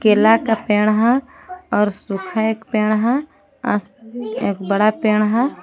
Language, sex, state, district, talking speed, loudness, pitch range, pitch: Hindi, female, Jharkhand, Palamu, 140 wpm, -18 LUFS, 210-240 Hz, 220 Hz